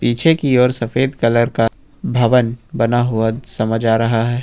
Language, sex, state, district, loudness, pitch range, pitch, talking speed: Hindi, male, Jharkhand, Ranchi, -16 LUFS, 115-125 Hz, 120 Hz, 175 wpm